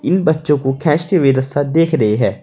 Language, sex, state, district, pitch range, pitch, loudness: Hindi, male, Uttar Pradesh, Saharanpur, 135-160 Hz, 150 Hz, -15 LUFS